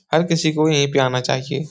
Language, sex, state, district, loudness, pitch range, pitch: Hindi, male, Bihar, Supaul, -18 LUFS, 135-155 Hz, 145 Hz